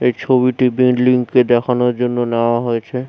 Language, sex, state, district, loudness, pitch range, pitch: Bengali, male, West Bengal, Jhargram, -15 LUFS, 120-125 Hz, 125 Hz